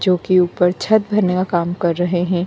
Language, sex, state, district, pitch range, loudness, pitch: Hindi, female, Bihar, Gaya, 175-185 Hz, -17 LUFS, 180 Hz